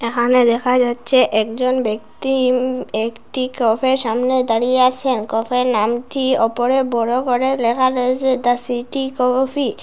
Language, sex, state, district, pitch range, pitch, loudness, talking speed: Bengali, female, Assam, Hailakandi, 235-260 Hz, 250 Hz, -17 LUFS, 135 wpm